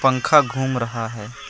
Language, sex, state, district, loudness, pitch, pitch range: Hindi, male, Assam, Kamrup Metropolitan, -20 LUFS, 125 Hz, 115-135 Hz